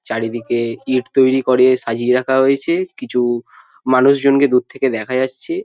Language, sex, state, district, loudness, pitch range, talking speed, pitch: Bengali, male, West Bengal, Jhargram, -16 LUFS, 125-135 Hz, 150 wpm, 130 Hz